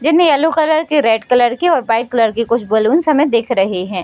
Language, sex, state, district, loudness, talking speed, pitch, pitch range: Hindi, female, Bihar, Bhagalpur, -14 LUFS, 235 wpm, 245 Hz, 225-310 Hz